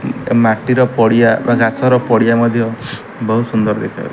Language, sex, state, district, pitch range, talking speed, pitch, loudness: Odia, male, Odisha, Malkangiri, 110-125 Hz, 190 wpm, 115 Hz, -13 LUFS